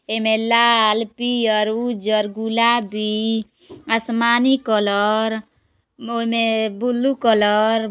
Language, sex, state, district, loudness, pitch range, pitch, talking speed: Bhojpuri, female, Uttar Pradesh, Gorakhpur, -18 LUFS, 215-235 Hz, 225 Hz, 90 wpm